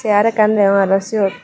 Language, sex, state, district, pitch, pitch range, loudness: Chakma, female, Tripura, Dhalai, 205 Hz, 195-215 Hz, -14 LUFS